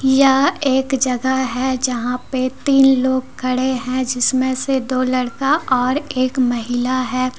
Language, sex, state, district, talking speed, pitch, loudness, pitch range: Hindi, female, Jharkhand, Deoghar, 155 wpm, 260 Hz, -17 LUFS, 255-265 Hz